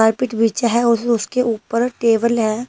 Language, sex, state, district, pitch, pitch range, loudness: Hindi, female, Himachal Pradesh, Shimla, 230 Hz, 225-240 Hz, -17 LUFS